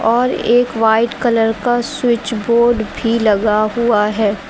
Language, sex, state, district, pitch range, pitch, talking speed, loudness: Hindi, female, Uttar Pradesh, Lucknow, 220-240 Hz, 230 Hz, 145 wpm, -15 LUFS